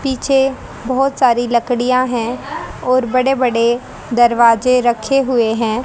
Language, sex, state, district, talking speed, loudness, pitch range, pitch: Hindi, female, Haryana, Jhajjar, 125 wpm, -15 LUFS, 235-260 Hz, 250 Hz